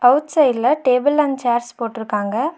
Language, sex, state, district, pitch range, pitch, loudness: Tamil, female, Tamil Nadu, Nilgiris, 235-290 Hz, 250 Hz, -18 LUFS